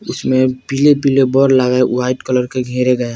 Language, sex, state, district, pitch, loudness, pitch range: Bajjika, male, Bihar, Vaishali, 130 Hz, -14 LUFS, 125-135 Hz